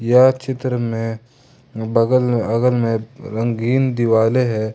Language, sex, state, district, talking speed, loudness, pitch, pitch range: Hindi, male, Jharkhand, Ranchi, 125 wpm, -18 LUFS, 120 Hz, 115-130 Hz